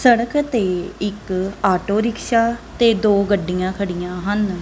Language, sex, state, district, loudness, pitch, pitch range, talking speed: Punjabi, female, Punjab, Kapurthala, -19 LUFS, 205 Hz, 185-230 Hz, 130 wpm